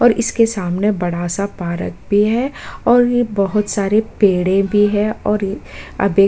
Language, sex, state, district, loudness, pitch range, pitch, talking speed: Hindi, female, Uttarakhand, Tehri Garhwal, -17 LUFS, 195-220 Hz, 205 Hz, 170 wpm